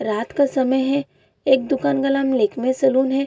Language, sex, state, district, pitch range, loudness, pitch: Hindi, female, Bihar, Bhagalpur, 260-275 Hz, -19 LUFS, 265 Hz